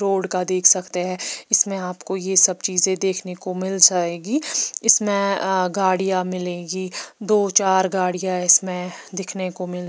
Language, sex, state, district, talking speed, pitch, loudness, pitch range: Hindi, female, Himachal Pradesh, Shimla, 150 wpm, 185 Hz, -19 LUFS, 180-195 Hz